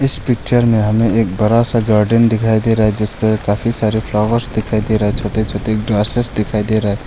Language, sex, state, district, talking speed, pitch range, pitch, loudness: Hindi, male, Arunachal Pradesh, Longding, 235 wpm, 105-115 Hz, 110 Hz, -14 LUFS